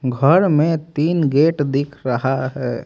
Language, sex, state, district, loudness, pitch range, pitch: Hindi, male, Haryana, Jhajjar, -17 LUFS, 135-155 Hz, 145 Hz